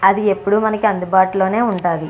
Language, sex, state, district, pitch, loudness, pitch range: Telugu, female, Andhra Pradesh, Chittoor, 195 Hz, -16 LUFS, 190-215 Hz